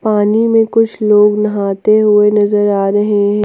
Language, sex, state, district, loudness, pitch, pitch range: Hindi, female, Jharkhand, Ranchi, -12 LUFS, 210 Hz, 205-215 Hz